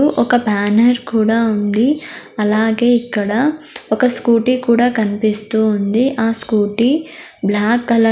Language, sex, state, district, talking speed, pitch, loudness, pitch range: Telugu, female, Andhra Pradesh, Sri Satya Sai, 120 wpm, 230 Hz, -15 LUFS, 215-245 Hz